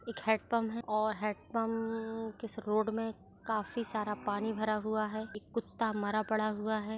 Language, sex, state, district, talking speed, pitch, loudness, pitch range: Hindi, female, Uttar Pradesh, Etah, 190 wpm, 220 Hz, -35 LUFS, 215-225 Hz